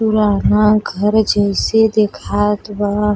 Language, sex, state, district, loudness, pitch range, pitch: Bhojpuri, female, Uttar Pradesh, Deoria, -15 LUFS, 205-215 Hz, 210 Hz